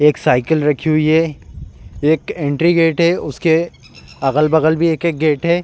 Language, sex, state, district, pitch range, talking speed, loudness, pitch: Hindi, male, Bihar, Bhagalpur, 150-165 Hz, 160 wpm, -15 LUFS, 155 Hz